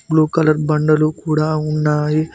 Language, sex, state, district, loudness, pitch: Telugu, male, Telangana, Mahabubabad, -16 LUFS, 155 Hz